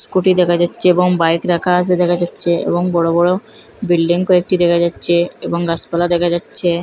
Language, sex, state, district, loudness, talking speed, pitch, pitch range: Bengali, female, Assam, Hailakandi, -15 LUFS, 185 wpm, 175 Hz, 170-180 Hz